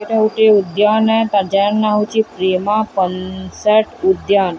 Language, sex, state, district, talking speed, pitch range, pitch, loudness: Odia, female, Odisha, Sambalpur, 130 wpm, 190-220 Hz, 210 Hz, -15 LUFS